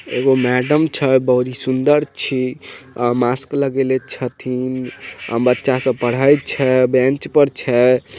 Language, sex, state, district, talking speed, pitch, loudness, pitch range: Maithili, male, Bihar, Samastipur, 130 wpm, 130 Hz, -17 LUFS, 125-135 Hz